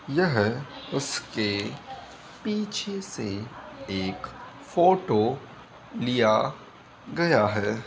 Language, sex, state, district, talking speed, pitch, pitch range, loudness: Hindi, male, Bihar, Saharsa, 70 wpm, 120 Hz, 105-170 Hz, -26 LUFS